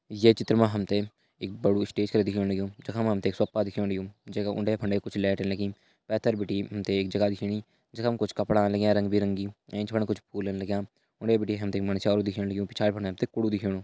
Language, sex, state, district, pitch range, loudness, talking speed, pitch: Hindi, male, Uttarakhand, Tehri Garhwal, 100-105 Hz, -28 LUFS, 220 wpm, 105 Hz